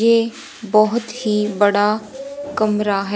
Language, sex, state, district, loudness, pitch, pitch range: Hindi, female, Haryana, Jhajjar, -18 LUFS, 215 Hz, 210-230 Hz